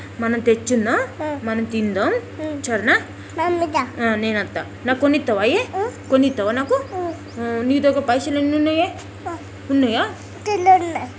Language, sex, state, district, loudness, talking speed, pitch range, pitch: Telugu, female, Telangana, Karimnagar, -20 LUFS, 105 wpm, 230-335 Hz, 275 Hz